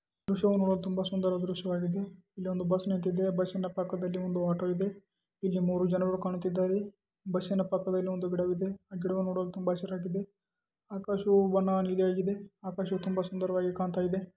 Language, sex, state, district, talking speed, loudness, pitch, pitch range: Kannada, male, Karnataka, Chamarajanagar, 155 wpm, -32 LUFS, 185 Hz, 185-190 Hz